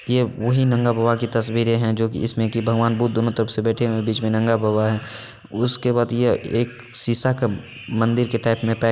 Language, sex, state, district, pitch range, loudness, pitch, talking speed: Hindi, male, Bihar, Purnia, 115-120 Hz, -20 LUFS, 115 Hz, 220 wpm